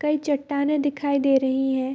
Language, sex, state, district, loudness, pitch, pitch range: Hindi, female, Bihar, Madhepura, -23 LUFS, 280 Hz, 270-295 Hz